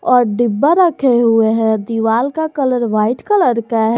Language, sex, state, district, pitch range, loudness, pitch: Hindi, female, Jharkhand, Garhwa, 225-275 Hz, -14 LUFS, 240 Hz